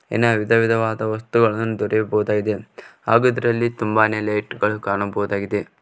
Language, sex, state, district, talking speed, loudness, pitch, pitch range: Kannada, male, Karnataka, Koppal, 115 wpm, -20 LUFS, 110 Hz, 105-115 Hz